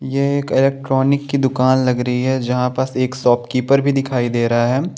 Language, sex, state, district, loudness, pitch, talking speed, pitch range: Hindi, male, Maharashtra, Chandrapur, -17 LUFS, 130 Hz, 215 wpm, 125-135 Hz